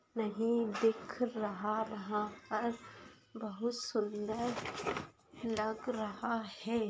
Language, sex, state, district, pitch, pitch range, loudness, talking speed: Hindi, female, Bihar, East Champaran, 220 Hz, 215-235 Hz, -37 LUFS, 85 wpm